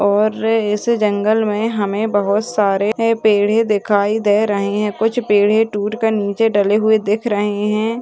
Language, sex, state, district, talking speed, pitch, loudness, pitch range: Hindi, female, Maharashtra, Pune, 165 wpm, 210 Hz, -16 LUFS, 205-220 Hz